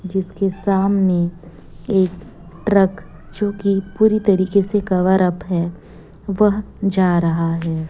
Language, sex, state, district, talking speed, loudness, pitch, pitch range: Hindi, female, Chhattisgarh, Raipur, 105 wpm, -18 LUFS, 190 Hz, 170-200 Hz